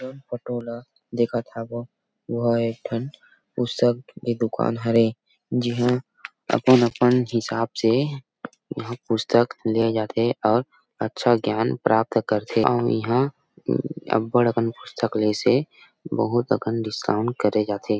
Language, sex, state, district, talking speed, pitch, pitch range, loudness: Chhattisgarhi, male, Chhattisgarh, Rajnandgaon, 135 wpm, 115 Hz, 115-120 Hz, -23 LUFS